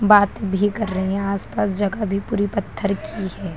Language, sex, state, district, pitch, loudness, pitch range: Hindi, female, Bihar, Kishanganj, 200 Hz, -22 LUFS, 195-205 Hz